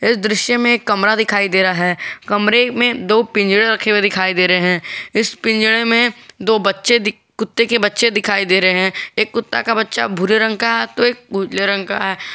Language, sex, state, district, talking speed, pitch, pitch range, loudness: Hindi, male, Jharkhand, Garhwa, 215 wpm, 215 Hz, 195-230 Hz, -15 LUFS